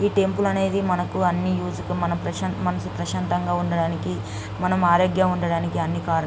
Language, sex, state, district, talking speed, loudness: Telugu, female, Andhra Pradesh, Guntur, 125 wpm, -23 LUFS